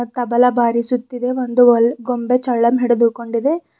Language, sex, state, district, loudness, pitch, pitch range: Kannada, female, Karnataka, Bidar, -16 LUFS, 245 Hz, 235-250 Hz